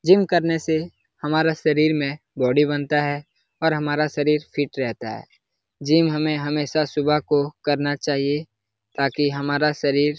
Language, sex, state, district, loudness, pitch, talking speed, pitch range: Hindi, male, Uttar Pradesh, Jalaun, -22 LUFS, 150 Hz, 155 wpm, 145-155 Hz